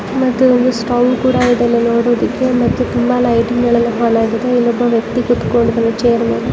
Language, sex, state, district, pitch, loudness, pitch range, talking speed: Kannada, female, Karnataka, Dharwad, 240 Hz, -14 LUFS, 235-250 Hz, 175 wpm